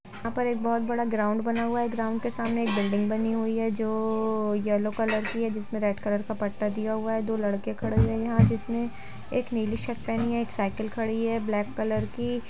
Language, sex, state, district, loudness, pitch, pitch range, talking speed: Hindi, female, Jharkhand, Jamtara, -28 LUFS, 220 Hz, 210-230 Hz, 245 wpm